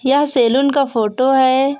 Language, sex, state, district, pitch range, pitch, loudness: Hindi, female, Chhattisgarh, Kabirdham, 255-280 Hz, 265 Hz, -15 LUFS